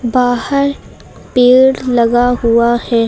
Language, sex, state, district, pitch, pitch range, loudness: Hindi, female, Uttar Pradesh, Lucknow, 245 Hz, 235-255 Hz, -12 LUFS